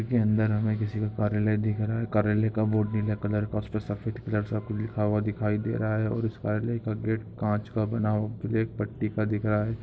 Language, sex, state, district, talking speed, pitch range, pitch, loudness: Hindi, male, Bihar, Samastipur, 250 wpm, 105-110 Hz, 110 Hz, -28 LUFS